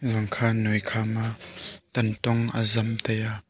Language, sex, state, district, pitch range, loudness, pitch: Wancho, male, Arunachal Pradesh, Longding, 110-115 Hz, -25 LUFS, 115 Hz